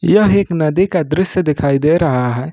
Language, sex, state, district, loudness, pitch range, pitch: Hindi, male, Jharkhand, Ranchi, -14 LUFS, 145-185 Hz, 165 Hz